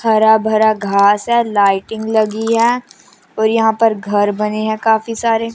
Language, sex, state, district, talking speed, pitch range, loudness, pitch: Hindi, female, Chandigarh, Chandigarh, 160 wpm, 210-225 Hz, -14 LUFS, 220 Hz